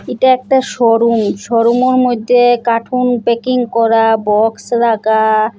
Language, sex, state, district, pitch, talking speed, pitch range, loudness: Bengali, female, Assam, Hailakandi, 235 Hz, 120 wpm, 225-245 Hz, -12 LUFS